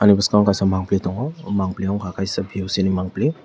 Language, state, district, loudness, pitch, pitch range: Kokborok, Tripura, West Tripura, -21 LUFS, 95 Hz, 95-100 Hz